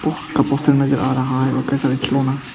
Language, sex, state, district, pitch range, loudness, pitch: Hindi, male, Arunachal Pradesh, Papum Pare, 130-140 Hz, -18 LUFS, 135 Hz